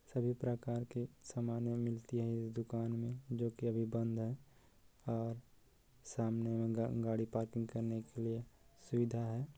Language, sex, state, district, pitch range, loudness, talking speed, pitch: Hindi, male, Chhattisgarh, Korba, 115-120 Hz, -40 LUFS, 150 wpm, 115 Hz